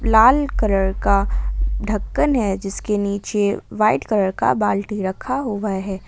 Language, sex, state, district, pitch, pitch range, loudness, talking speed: Hindi, female, Jharkhand, Garhwa, 205 Hz, 195-220 Hz, -20 LUFS, 140 wpm